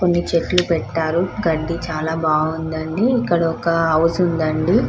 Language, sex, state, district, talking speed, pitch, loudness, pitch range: Telugu, female, Telangana, Karimnagar, 135 wpm, 165 Hz, -19 LUFS, 160-175 Hz